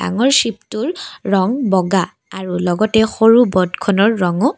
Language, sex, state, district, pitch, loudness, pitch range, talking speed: Assamese, female, Assam, Kamrup Metropolitan, 215 Hz, -15 LUFS, 185-230 Hz, 105 wpm